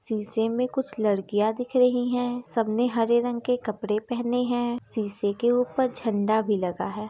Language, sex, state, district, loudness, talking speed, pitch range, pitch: Hindi, female, Bihar, Gopalganj, -26 LUFS, 175 wpm, 215-245 Hz, 235 Hz